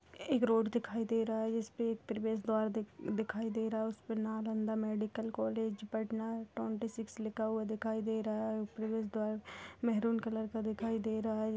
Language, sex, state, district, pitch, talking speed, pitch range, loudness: Hindi, female, Bihar, Purnia, 220 Hz, 185 wpm, 220-225 Hz, -37 LUFS